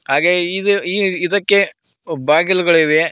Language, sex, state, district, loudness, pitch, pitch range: Kannada, male, Karnataka, Koppal, -15 LUFS, 180 Hz, 165-195 Hz